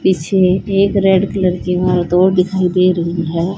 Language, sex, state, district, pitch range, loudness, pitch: Hindi, female, Haryana, Charkhi Dadri, 180-190 Hz, -14 LUFS, 180 Hz